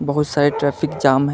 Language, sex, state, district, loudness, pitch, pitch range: Hindi, male, Karnataka, Bangalore, -18 LUFS, 145 Hz, 140-145 Hz